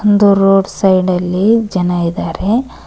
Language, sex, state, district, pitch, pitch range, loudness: Kannada, female, Karnataka, Koppal, 195 Hz, 180-205 Hz, -13 LUFS